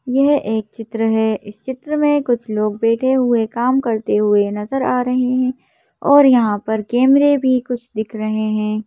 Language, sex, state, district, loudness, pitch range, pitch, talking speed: Hindi, female, Madhya Pradesh, Bhopal, -17 LUFS, 215-260 Hz, 235 Hz, 185 wpm